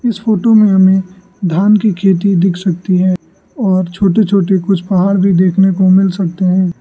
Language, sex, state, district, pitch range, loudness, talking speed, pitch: Hindi, male, Arunachal Pradesh, Lower Dibang Valley, 185-195 Hz, -12 LUFS, 185 wpm, 190 Hz